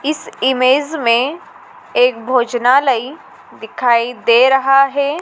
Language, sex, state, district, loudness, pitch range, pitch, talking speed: Hindi, female, Madhya Pradesh, Dhar, -14 LUFS, 245-275 Hz, 260 Hz, 105 wpm